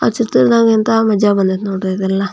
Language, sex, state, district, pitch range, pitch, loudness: Kannada, female, Karnataka, Belgaum, 190-225 Hz, 200 Hz, -14 LUFS